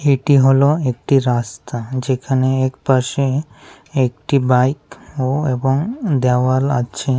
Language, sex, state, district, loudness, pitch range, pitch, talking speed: Bengali, male, Tripura, West Tripura, -17 LUFS, 130-140 Hz, 130 Hz, 100 wpm